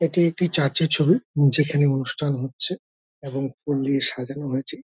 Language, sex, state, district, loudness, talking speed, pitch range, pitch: Bengali, male, West Bengal, Dakshin Dinajpur, -22 LUFS, 175 wpm, 135-165 Hz, 145 Hz